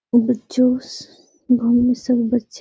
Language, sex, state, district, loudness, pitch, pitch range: Hindi, female, Bihar, Gaya, -18 LUFS, 245 Hz, 240-250 Hz